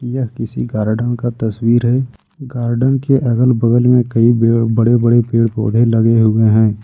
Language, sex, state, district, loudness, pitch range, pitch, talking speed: Hindi, male, Jharkhand, Ranchi, -14 LUFS, 115-120 Hz, 115 Hz, 165 wpm